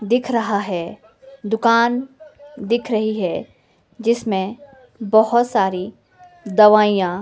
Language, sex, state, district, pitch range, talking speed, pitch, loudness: Hindi, female, Himachal Pradesh, Shimla, 210-245 Hz, 90 wpm, 225 Hz, -18 LUFS